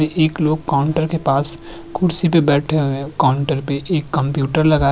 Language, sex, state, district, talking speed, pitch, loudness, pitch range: Hindi, male, Uttarakhand, Tehri Garhwal, 205 wpm, 155 Hz, -18 LUFS, 140-160 Hz